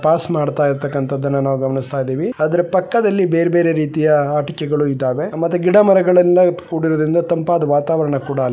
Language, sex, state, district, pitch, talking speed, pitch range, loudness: Kannada, male, Karnataka, Bellary, 155 Hz, 140 wpm, 145-175 Hz, -16 LUFS